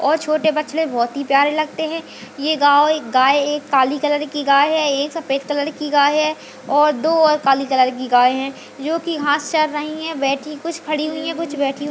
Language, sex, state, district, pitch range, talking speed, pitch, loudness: Hindi, female, Bihar, Jamui, 275-310 Hz, 235 wpm, 295 Hz, -18 LUFS